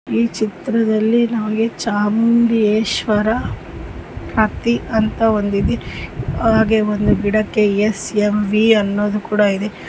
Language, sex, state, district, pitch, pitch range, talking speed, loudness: Kannada, female, Karnataka, Mysore, 215 Hz, 210-225 Hz, 90 wpm, -17 LUFS